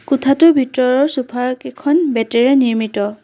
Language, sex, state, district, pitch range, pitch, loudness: Assamese, female, Assam, Sonitpur, 235-275 Hz, 255 Hz, -15 LUFS